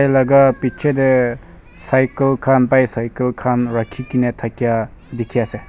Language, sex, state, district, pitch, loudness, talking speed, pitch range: Nagamese, male, Nagaland, Kohima, 125 Hz, -17 LUFS, 125 wpm, 115-130 Hz